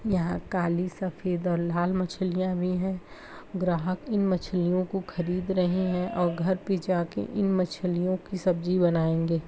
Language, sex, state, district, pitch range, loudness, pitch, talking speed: Hindi, female, Bihar, Araria, 175-185 Hz, -28 LUFS, 180 Hz, 150 wpm